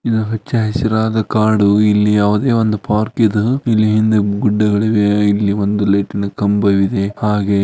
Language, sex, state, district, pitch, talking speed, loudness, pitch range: Kannada, male, Karnataka, Dharwad, 105 Hz, 140 wpm, -15 LUFS, 100-110 Hz